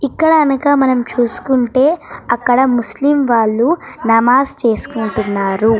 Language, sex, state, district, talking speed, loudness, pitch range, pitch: Telugu, female, Andhra Pradesh, Srikakulam, 95 wpm, -14 LUFS, 225-275 Hz, 245 Hz